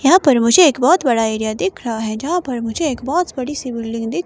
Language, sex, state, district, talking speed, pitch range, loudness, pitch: Hindi, female, Himachal Pradesh, Shimla, 255 wpm, 230-325 Hz, -17 LUFS, 255 Hz